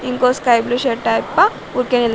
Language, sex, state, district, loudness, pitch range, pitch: Telugu, female, Andhra Pradesh, Sri Satya Sai, -16 LUFS, 235-250 Hz, 245 Hz